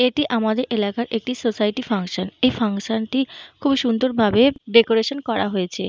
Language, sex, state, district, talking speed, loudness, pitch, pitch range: Bengali, female, Jharkhand, Jamtara, 165 wpm, -20 LUFS, 230 Hz, 215-255 Hz